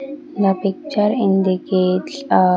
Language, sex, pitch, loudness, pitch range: English, female, 200 Hz, -18 LUFS, 185-275 Hz